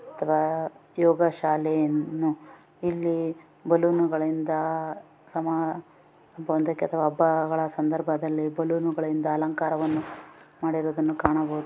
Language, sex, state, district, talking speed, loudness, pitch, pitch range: Kannada, female, Karnataka, Bellary, 75 wpm, -26 LUFS, 160 Hz, 155-165 Hz